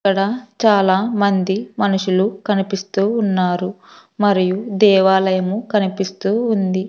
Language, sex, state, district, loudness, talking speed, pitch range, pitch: Telugu, female, Andhra Pradesh, Sri Satya Sai, -17 LUFS, 85 wpm, 190-210 Hz, 195 Hz